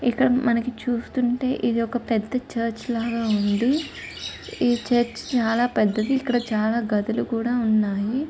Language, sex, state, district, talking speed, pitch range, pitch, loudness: Telugu, female, Andhra Pradesh, Chittoor, 125 wpm, 225-245 Hz, 235 Hz, -23 LUFS